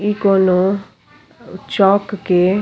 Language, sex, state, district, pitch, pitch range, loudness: Bhojpuri, female, Uttar Pradesh, Deoria, 195 Hz, 185-205 Hz, -15 LUFS